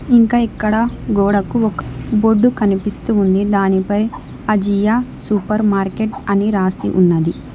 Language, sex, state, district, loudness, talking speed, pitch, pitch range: Telugu, female, Telangana, Hyderabad, -16 LUFS, 120 wpm, 210 Hz, 195-220 Hz